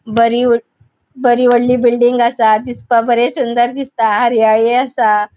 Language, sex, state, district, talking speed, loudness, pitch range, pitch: Konkani, female, Goa, North and South Goa, 125 wpm, -13 LUFS, 230-245 Hz, 240 Hz